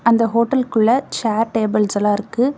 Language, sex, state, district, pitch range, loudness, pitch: Tamil, female, Tamil Nadu, Namakkal, 215-240 Hz, -17 LUFS, 230 Hz